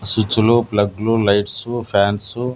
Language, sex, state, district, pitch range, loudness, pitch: Telugu, male, Andhra Pradesh, Sri Satya Sai, 100-120 Hz, -17 LUFS, 110 Hz